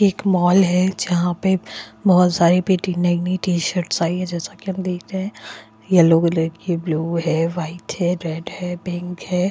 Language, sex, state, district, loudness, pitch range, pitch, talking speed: Hindi, female, Uttarakhand, Tehri Garhwal, -19 LUFS, 170-185 Hz, 175 Hz, 200 wpm